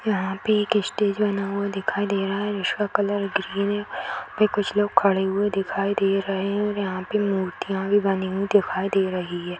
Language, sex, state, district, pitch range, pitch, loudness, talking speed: Hindi, female, Bihar, Bhagalpur, 195-205 Hz, 200 Hz, -24 LUFS, 230 wpm